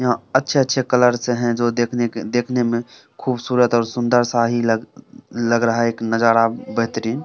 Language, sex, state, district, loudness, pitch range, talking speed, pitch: Hindi, male, Bihar, Samastipur, -19 LUFS, 115-125 Hz, 175 wpm, 120 Hz